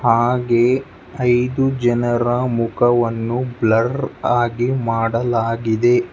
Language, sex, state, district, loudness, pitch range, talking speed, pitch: Kannada, male, Karnataka, Bangalore, -18 LUFS, 115-125 Hz, 70 wpm, 120 Hz